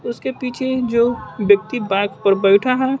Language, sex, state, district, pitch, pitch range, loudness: Hindi, male, Bihar, West Champaran, 235 Hz, 200-255 Hz, -18 LUFS